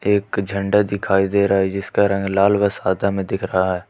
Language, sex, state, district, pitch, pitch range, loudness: Hindi, male, Jharkhand, Ranchi, 100 Hz, 95-100 Hz, -19 LUFS